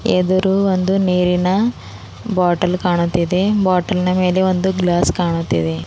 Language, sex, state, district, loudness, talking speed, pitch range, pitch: Kannada, female, Karnataka, Bidar, -16 LUFS, 100 wpm, 175-190 Hz, 180 Hz